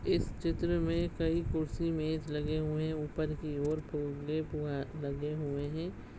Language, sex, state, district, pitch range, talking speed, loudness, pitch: Hindi, female, Bihar, Madhepura, 150-165 Hz, 165 wpm, -35 LUFS, 155 Hz